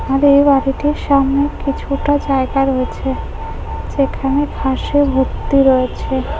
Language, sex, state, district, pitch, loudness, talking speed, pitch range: Bengali, female, West Bengal, Jhargram, 275 Hz, -16 LUFS, 115 wpm, 270-285 Hz